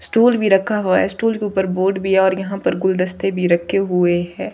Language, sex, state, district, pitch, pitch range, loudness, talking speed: Hindi, female, Himachal Pradesh, Shimla, 190 Hz, 185-195 Hz, -17 LUFS, 250 wpm